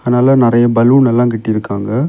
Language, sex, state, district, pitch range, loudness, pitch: Tamil, male, Tamil Nadu, Kanyakumari, 115-125 Hz, -12 LUFS, 120 Hz